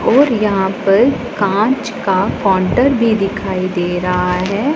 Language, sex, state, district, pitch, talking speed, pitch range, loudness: Hindi, female, Punjab, Pathankot, 200 Hz, 140 wpm, 185-245 Hz, -15 LUFS